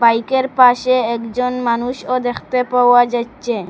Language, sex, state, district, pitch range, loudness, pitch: Bengali, female, Assam, Hailakandi, 235-250 Hz, -16 LUFS, 245 Hz